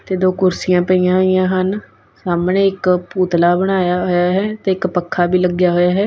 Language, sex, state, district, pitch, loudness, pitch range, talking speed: Punjabi, female, Punjab, Kapurthala, 185 Hz, -16 LUFS, 180-185 Hz, 190 wpm